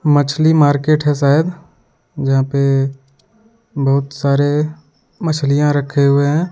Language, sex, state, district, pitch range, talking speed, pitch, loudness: Hindi, male, Jharkhand, Deoghar, 140-155 Hz, 110 wpm, 145 Hz, -15 LUFS